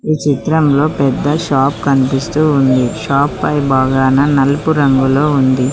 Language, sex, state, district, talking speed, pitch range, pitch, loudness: Telugu, female, Telangana, Mahabubabad, 115 wpm, 135-150 Hz, 140 Hz, -13 LUFS